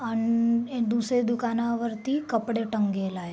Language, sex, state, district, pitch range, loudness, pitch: Marathi, female, Maharashtra, Sindhudurg, 225-235 Hz, -26 LUFS, 230 Hz